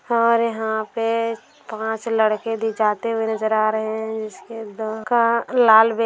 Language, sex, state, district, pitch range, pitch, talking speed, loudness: Bhojpuri, female, Bihar, Saran, 220-230 Hz, 220 Hz, 170 wpm, -20 LUFS